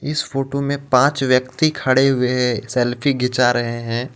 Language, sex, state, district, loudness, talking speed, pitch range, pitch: Hindi, male, Jharkhand, Ranchi, -18 LUFS, 175 wpm, 125-140 Hz, 130 Hz